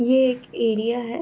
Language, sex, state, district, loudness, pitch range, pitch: Hindi, female, Bihar, Saharsa, -22 LUFS, 230-250 Hz, 240 Hz